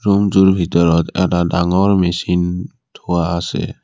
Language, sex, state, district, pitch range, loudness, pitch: Assamese, male, Assam, Kamrup Metropolitan, 85-95 Hz, -15 LUFS, 90 Hz